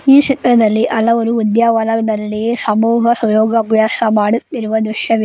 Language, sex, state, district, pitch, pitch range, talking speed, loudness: Kannada, female, Karnataka, Koppal, 225 Hz, 220-235 Hz, 105 wpm, -14 LUFS